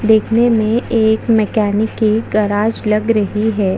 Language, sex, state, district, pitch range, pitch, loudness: Hindi, female, Chhattisgarh, Jashpur, 210-225 Hz, 220 Hz, -15 LUFS